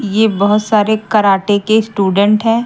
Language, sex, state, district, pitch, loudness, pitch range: Hindi, female, Haryana, Jhajjar, 210 Hz, -13 LUFS, 200-220 Hz